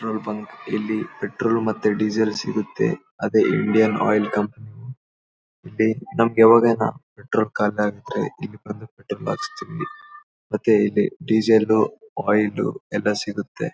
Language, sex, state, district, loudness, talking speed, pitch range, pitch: Kannada, male, Karnataka, Bellary, -21 LUFS, 120 wpm, 105-115 Hz, 110 Hz